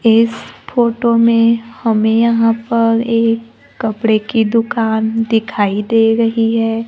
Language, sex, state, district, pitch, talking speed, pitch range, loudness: Hindi, female, Maharashtra, Gondia, 225 Hz, 120 wpm, 225-230 Hz, -14 LUFS